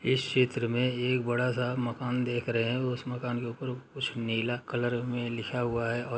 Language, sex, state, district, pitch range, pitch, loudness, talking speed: Hindi, male, Uttar Pradesh, Muzaffarnagar, 120-125 Hz, 120 Hz, -31 LUFS, 225 wpm